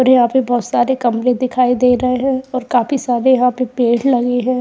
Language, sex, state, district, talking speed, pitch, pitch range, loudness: Hindi, female, Uttar Pradesh, Jyotiba Phule Nagar, 235 wpm, 250 Hz, 245-255 Hz, -15 LUFS